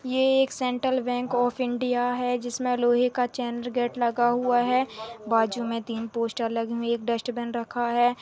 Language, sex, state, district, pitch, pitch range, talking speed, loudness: Hindi, female, Chhattisgarh, Bastar, 245 Hz, 235-250 Hz, 195 wpm, -26 LUFS